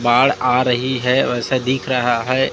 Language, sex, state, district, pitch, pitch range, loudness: Hindi, male, Chhattisgarh, Raipur, 130 Hz, 125-130 Hz, -17 LUFS